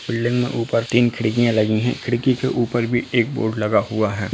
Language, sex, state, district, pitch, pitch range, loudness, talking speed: Hindi, male, Bihar, Lakhisarai, 120 Hz, 110-120 Hz, -20 LUFS, 220 wpm